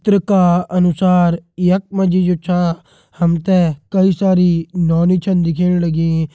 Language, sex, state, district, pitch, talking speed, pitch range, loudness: Hindi, male, Uttarakhand, Uttarkashi, 180 Hz, 130 wpm, 170-185 Hz, -15 LUFS